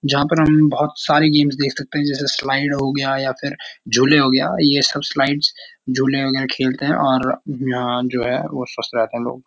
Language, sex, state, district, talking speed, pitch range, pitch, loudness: Hindi, male, Uttarakhand, Uttarkashi, 190 wpm, 130-145 Hz, 135 Hz, -18 LUFS